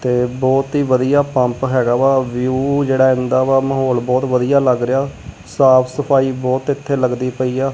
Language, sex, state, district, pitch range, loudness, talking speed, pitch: Punjabi, male, Punjab, Kapurthala, 125-135 Hz, -16 LUFS, 180 wpm, 130 Hz